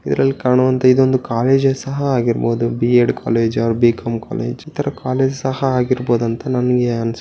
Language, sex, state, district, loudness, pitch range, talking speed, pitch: Kannada, male, Karnataka, Bellary, -17 LUFS, 115-135 Hz, 150 wpm, 125 Hz